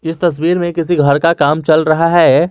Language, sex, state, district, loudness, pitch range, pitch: Hindi, male, Jharkhand, Garhwa, -12 LUFS, 155-170 Hz, 165 Hz